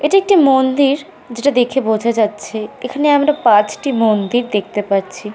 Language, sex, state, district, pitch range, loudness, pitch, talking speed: Bengali, female, West Bengal, North 24 Parganas, 210-280 Hz, -15 LUFS, 245 Hz, 145 wpm